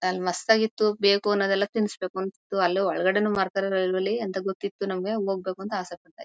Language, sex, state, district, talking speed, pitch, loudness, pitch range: Kannada, female, Karnataka, Mysore, 180 wpm, 195 Hz, -25 LUFS, 185-205 Hz